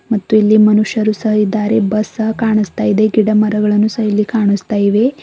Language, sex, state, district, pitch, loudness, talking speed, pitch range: Kannada, female, Karnataka, Bidar, 215 Hz, -13 LUFS, 160 wpm, 210-220 Hz